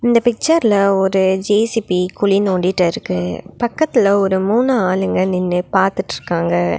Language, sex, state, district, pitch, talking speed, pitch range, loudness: Tamil, female, Tamil Nadu, Nilgiris, 190 Hz, 105 wpm, 180-215 Hz, -16 LUFS